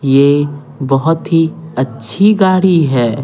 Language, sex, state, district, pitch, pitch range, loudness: Hindi, male, Bihar, Patna, 145 Hz, 135-165 Hz, -13 LUFS